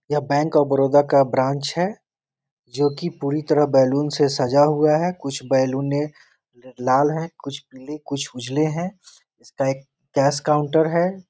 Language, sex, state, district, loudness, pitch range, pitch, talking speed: Hindi, male, Bihar, Muzaffarpur, -20 LUFS, 135-150 Hz, 145 Hz, 160 wpm